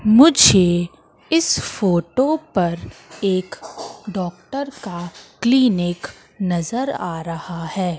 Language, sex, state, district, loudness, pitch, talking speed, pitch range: Hindi, female, Madhya Pradesh, Katni, -19 LUFS, 185 Hz, 90 wpm, 175-250 Hz